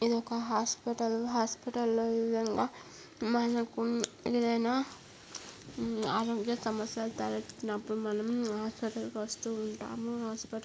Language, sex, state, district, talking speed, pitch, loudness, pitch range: Telugu, female, Andhra Pradesh, Guntur, 115 wpm, 230 Hz, -33 LUFS, 220-235 Hz